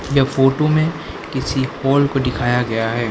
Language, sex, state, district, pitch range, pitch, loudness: Hindi, male, Arunachal Pradesh, Lower Dibang Valley, 125-140 Hz, 135 Hz, -18 LUFS